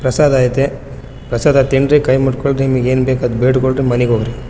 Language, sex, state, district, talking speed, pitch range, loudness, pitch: Kannada, male, Karnataka, Bellary, 175 wpm, 125-135 Hz, -14 LUFS, 130 Hz